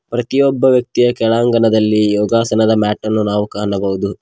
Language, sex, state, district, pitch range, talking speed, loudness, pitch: Kannada, male, Karnataka, Koppal, 105-120 Hz, 85 wpm, -14 LUFS, 110 Hz